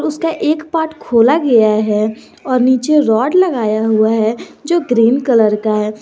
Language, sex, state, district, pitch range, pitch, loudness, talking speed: Hindi, male, Jharkhand, Garhwa, 220-305 Hz, 235 Hz, -13 LUFS, 170 wpm